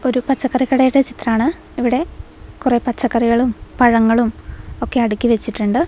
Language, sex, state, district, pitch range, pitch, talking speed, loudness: Malayalam, female, Kerala, Wayanad, 230-260 Hz, 245 Hz, 110 wpm, -17 LUFS